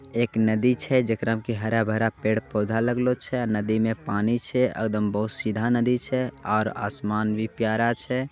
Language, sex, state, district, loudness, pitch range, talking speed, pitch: Angika, male, Bihar, Begusarai, -25 LUFS, 110-125 Hz, 180 wpm, 115 Hz